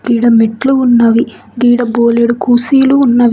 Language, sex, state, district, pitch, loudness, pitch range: Telugu, female, Telangana, Hyderabad, 240 Hz, -10 LUFS, 235-250 Hz